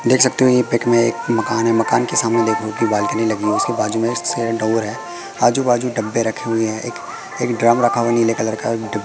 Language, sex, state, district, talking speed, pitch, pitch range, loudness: Hindi, female, Madhya Pradesh, Katni, 265 wpm, 115 Hz, 110-120 Hz, -17 LUFS